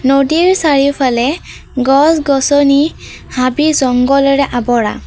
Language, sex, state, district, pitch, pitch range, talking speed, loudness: Assamese, female, Assam, Kamrup Metropolitan, 275 Hz, 260-290 Hz, 85 wpm, -12 LUFS